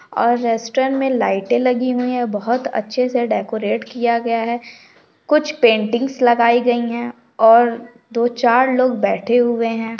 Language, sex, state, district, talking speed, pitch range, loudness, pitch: Hindi, female, Bihar, Samastipur, 150 wpm, 230-250 Hz, -17 LUFS, 240 Hz